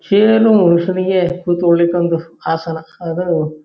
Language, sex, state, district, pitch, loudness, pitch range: Kannada, male, Karnataka, Shimoga, 175 Hz, -14 LUFS, 165-185 Hz